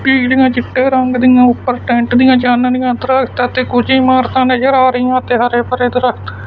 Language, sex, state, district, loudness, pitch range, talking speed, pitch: Punjabi, male, Punjab, Fazilka, -12 LUFS, 245-260 Hz, 175 wpm, 250 Hz